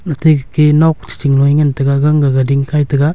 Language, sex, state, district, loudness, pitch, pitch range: Wancho, male, Arunachal Pradesh, Longding, -12 LUFS, 145 Hz, 140-150 Hz